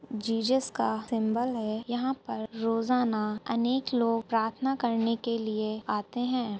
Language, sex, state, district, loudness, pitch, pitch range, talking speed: Hindi, female, Uttar Pradesh, Etah, -29 LUFS, 230 Hz, 220-245 Hz, 135 wpm